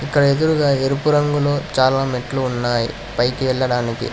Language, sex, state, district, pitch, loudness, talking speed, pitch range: Telugu, male, Telangana, Hyderabad, 135 Hz, -18 LUFS, 130 wpm, 125-145 Hz